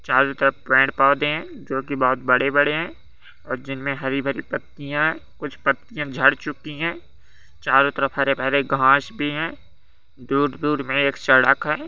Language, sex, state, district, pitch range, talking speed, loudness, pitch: Hindi, male, Bihar, Bhagalpur, 135-150 Hz, 155 wpm, -21 LUFS, 140 Hz